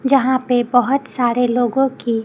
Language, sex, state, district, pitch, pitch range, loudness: Hindi, female, Chhattisgarh, Raipur, 245 Hz, 245-265 Hz, -17 LUFS